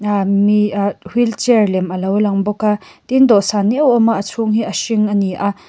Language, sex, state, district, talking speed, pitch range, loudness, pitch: Mizo, female, Mizoram, Aizawl, 265 wpm, 200-225 Hz, -15 LUFS, 210 Hz